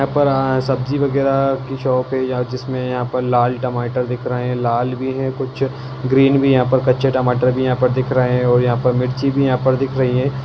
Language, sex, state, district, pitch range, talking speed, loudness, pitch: Hindi, male, Bihar, Gaya, 125-135 Hz, 235 wpm, -17 LUFS, 130 Hz